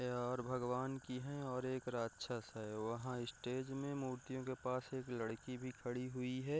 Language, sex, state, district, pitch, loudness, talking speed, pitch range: Hindi, male, Chhattisgarh, Raigarh, 125 Hz, -44 LUFS, 200 wpm, 120-130 Hz